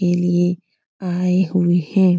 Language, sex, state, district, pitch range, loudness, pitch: Hindi, female, Bihar, Supaul, 175-185 Hz, -18 LUFS, 175 Hz